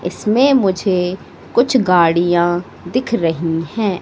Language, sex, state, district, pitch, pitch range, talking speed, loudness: Hindi, female, Madhya Pradesh, Katni, 185 Hz, 175-230 Hz, 105 wpm, -16 LUFS